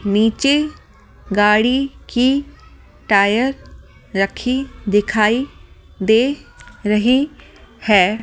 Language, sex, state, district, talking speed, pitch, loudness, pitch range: Hindi, female, Delhi, New Delhi, 75 wpm, 225 Hz, -17 LUFS, 205-265 Hz